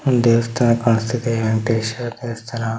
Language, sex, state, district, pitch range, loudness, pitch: Kannada, male, Karnataka, Dharwad, 115-120 Hz, -19 LUFS, 115 Hz